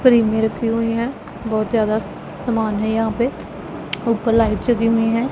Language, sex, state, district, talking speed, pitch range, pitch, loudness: Hindi, female, Punjab, Pathankot, 170 wpm, 220-235 Hz, 225 Hz, -19 LUFS